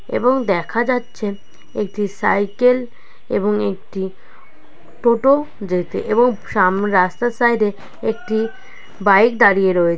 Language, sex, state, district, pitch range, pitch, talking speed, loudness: Bengali, male, West Bengal, Purulia, 195-240 Hz, 210 Hz, 115 wpm, -18 LUFS